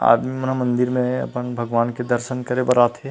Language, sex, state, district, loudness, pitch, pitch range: Chhattisgarhi, male, Chhattisgarh, Rajnandgaon, -21 LUFS, 125 Hz, 120-125 Hz